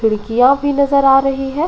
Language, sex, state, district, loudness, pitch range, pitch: Hindi, female, Uttar Pradesh, Ghazipur, -13 LUFS, 250-280 Hz, 270 Hz